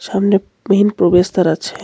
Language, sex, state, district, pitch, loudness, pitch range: Bengali, male, West Bengal, Cooch Behar, 195 Hz, -14 LUFS, 180-200 Hz